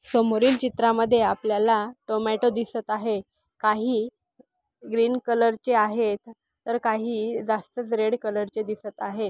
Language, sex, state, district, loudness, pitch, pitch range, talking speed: Marathi, female, Maharashtra, Aurangabad, -24 LUFS, 225 Hz, 215-235 Hz, 125 wpm